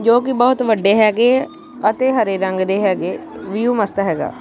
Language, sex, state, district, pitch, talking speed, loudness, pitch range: Punjabi, male, Punjab, Kapurthala, 220 Hz, 190 wpm, -16 LUFS, 195-245 Hz